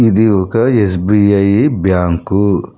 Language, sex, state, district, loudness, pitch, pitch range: Telugu, male, Telangana, Hyderabad, -12 LUFS, 100 Hz, 95-105 Hz